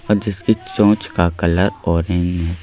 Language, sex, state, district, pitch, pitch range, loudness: Hindi, male, Madhya Pradesh, Bhopal, 90 Hz, 85-105 Hz, -17 LUFS